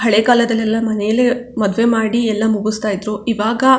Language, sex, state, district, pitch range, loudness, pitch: Kannada, female, Karnataka, Chamarajanagar, 215-235 Hz, -16 LUFS, 225 Hz